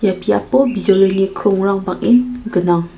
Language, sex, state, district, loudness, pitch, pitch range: Garo, female, Meghalaya, South Garo Hills, -15 LUFS, 195 Hz, 185-235 Hz